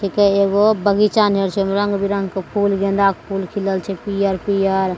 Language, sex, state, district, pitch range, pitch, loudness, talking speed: Maithili, female, Bihar, Begusarai, 195-200 Hz, 200 Hz, -18 LUFS, 155 wpm